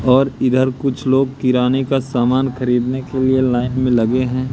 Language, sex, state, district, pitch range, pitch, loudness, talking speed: Hindi, male, Madhya Pradesh, Katni, 125-130 Hz, 130 Hz, -17 LUFS, 185 wpm